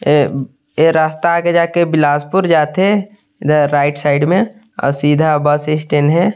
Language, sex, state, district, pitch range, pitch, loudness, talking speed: Chhattisgarhi, male, Chhattisgarh, Sarguja, 145-175 Hz, 155 Hz, -14 LUFS, 170 wpm